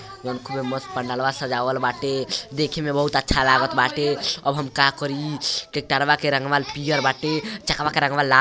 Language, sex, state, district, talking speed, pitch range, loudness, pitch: Bhojpuri, male, Uttar Pradesh, Gorakhpur, 185 wpm, 130-145 Hz, -22 LUFS, 140 Hz